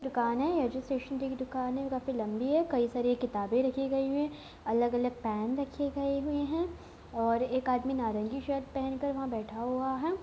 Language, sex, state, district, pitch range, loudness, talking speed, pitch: Hindi, female, Bihar, Gopalganj, 245-275 Hz, -32 LUFS, 205 wpm, 260 Hz